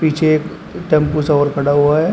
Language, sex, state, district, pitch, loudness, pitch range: Hindi, male, Uttar Pradesh, Shamli, 150 Hz, -15 LUFS, 145-155 Hz